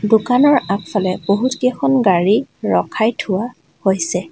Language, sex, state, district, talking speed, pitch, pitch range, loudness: Assamese, female, Assam, Sonitpur, 110 wpm, 210 Hz, 190-250 Hz, -16 LUFS